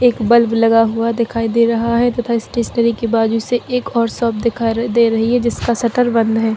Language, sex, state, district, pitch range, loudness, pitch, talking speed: Hindi, female, Chhattisgarh, Bilaspur, 225-235 Hz, -15 LUFS, 235 Hz, 220 wpm